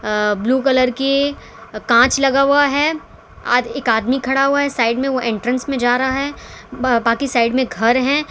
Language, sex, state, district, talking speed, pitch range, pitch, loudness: Hindi, female, Gujarat, Valsad, 200 wpm, 235-275 Hz, 260 Hz, -16 LUFS